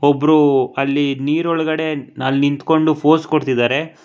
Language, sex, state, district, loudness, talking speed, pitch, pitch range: Kannada, male, Karnataka, Bangalore, -16 LUFS, 120 wpm, 145 Hz, 135-155 Hz